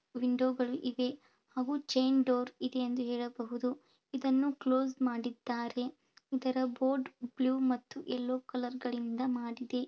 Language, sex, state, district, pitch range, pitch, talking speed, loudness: Kannada, female, Karnataka, Belgaum, 245-260 Hz, 255 Hz, 115 wpm, -34 LUFS